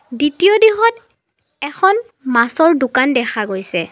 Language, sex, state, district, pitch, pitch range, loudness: Assamese, female, Assam, Sonitpur, 285 Hz, 240-395 Hz, -14 LUFS